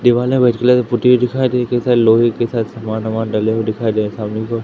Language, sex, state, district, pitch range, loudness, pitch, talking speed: Hindi, male, Madhya Pradesh, Katni, 110-125 Hz, -15 LUFS, 115 Hz, 270 wpm